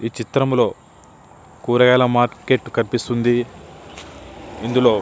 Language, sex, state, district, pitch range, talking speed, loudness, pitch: Telugu, male, Andhra Pradesh, Visakhapatnam, 115-125 Hz, 70 wpm, -18 LUFS, 120 Hz